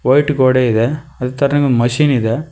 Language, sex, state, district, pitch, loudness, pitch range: Kannada, male, Karnataka, Koppal, 130 Hz, -14 LUFS, 125-145 Hz